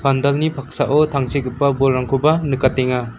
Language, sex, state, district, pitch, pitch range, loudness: Garo, female, Meghalaya, West Garo Hills, 135 Hz, 130-145 Hz, -18 LUFS